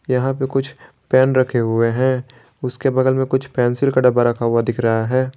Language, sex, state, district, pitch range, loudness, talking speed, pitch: Hindi, male, Jharkhand, Garhwa, 120-130 Hz, -18 LUFS, 210 wpm, 130 Hz